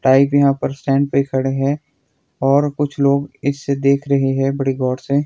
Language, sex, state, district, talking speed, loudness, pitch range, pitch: Hindi, male, Himachal Pradesh, Shimla, 195 wpm, -17 LUFS, 135-140 Hz, 140 Hz